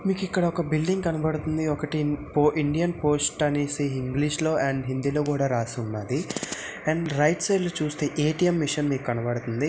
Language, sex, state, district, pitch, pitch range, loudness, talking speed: Telugu, male, Andhra Pradesh, Visakhapatnam, 150 Hz, 140-160 Hz, -25 LUFS, 140 wpm